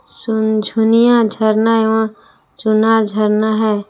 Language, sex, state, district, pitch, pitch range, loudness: Hindi, female, Jharkhand, Palamu, 220 Hz, 215-225 Hz, -14 LUFS